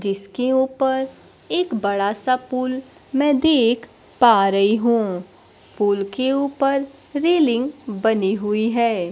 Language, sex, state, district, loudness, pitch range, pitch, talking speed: Hindi, female, Bihar, Kaimur, -20 LUFS, 205-265 Hz, 240 Hz, 120 wpm